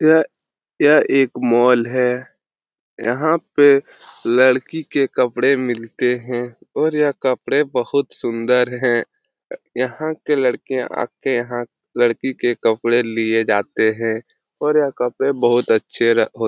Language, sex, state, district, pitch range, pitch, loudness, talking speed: Hindi, male, Jharkhand, Jamtara, 120-140 Hz, 125 Hz, -18 LUFS, 115 wpm